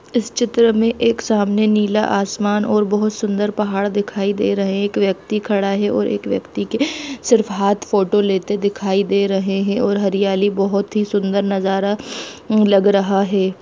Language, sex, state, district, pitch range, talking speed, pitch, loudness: Hindi, female, Jharkhand, Jamtara, 195-215 Hz, 175 wpm, 205 Hz, -18 LUFS